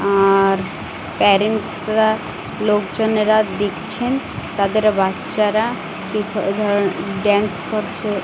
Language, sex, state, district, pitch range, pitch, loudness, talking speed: Bengali, female, Odisha, Malkangiri, 195-215 Hz, 210 Hz, -18 LUFS, 80 wpm